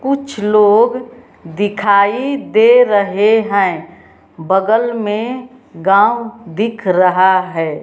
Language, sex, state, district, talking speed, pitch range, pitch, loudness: Hindi, female, Bihar, West Champaran, 90 wpm, 190-240 Hz, 210 Hz, -13 LUFS